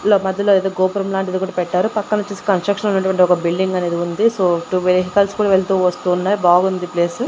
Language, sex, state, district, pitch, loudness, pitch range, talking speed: Telugu, female, Andhra Pradesh, Annamaya, 190 Hz, -17 LUFS, 180-200 Hz, 190 wpm